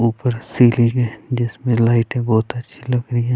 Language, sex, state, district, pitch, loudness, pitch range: Hindi, male, Chhattisgarh, Raipur, 120 Hz, -18 LUFS, 115-125 Hz